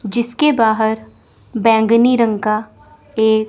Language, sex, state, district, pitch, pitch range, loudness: Hindi, female, Chandigarh, Chandigarh, 220 Hz, 215-230 Hz, -15 LUFS